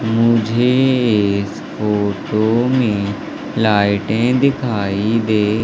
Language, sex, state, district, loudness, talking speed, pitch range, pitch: Hindi, male, Madhya Pradesh, Katni, -16 LUFS, 75 wpm, 105-120 Hz, 110 Hz